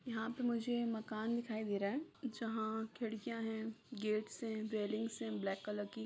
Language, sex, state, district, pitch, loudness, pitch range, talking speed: Hindi, female, Bihar, Jahanabad, 225 Hz, -41 LUFS, 215-230 Hz, 190 wpm